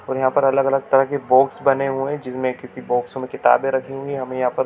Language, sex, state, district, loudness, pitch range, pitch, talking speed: Hindi, male, Chhattisgarh, Bilaspur, -20 LUFS, 130-135 Hz, 130 Hz, 285 wpm